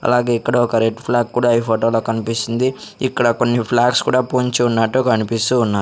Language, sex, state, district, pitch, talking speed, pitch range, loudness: Telugu, male, Andhra Pradesh, Sri Satya Sai, 120 Hz, 195 wpm, 115-125 Hz, -17 LUFS